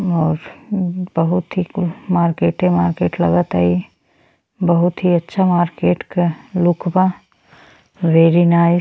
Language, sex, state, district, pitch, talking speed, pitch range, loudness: Bhojpuri, female, Uttar Pradesh, Deoria, 170 Hz, 125 wpm, 160-180 Hz, -17 LUFS